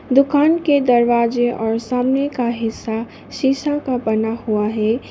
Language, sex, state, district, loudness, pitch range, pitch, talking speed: Hindi, female, Sikkim, Gangtok, -18 LUFS, 225-275 Hz, 240 Hz, 140 wpm